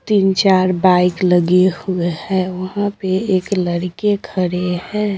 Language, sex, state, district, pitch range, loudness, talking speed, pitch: Hindi, female, Bihar, Patna, 180-195 Hz, -16 LUFS, 140 wpm, 185 Hz